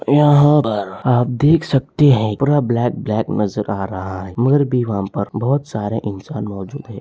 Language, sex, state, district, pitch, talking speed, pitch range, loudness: Hindi, male, Bihar, Saran, 120 Hz, 190 wpm, 100-145 Hz, -17 LUFS